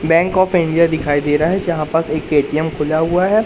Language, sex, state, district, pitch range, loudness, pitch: Hindi, male, Madhya Pradesh, Katni, 155-175 Hz, -16 LUFS, 160 Hz